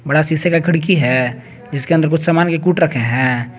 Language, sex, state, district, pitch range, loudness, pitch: Hindi, male, Jharkhand, Garhwa, 130-170 Hz, -15 LUFS, 160 Hz